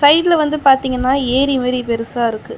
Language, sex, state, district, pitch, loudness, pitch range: Tamil, female, Tamil Nadu, Chennai, 265 Hz, -15 LUFS, 250-285 Hz